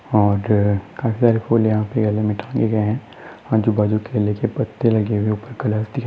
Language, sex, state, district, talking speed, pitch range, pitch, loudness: Hindi, male, Maharashtra, Nagpur, 100 wpm, 105-115 Hz, 110 Hz, -19 LUFS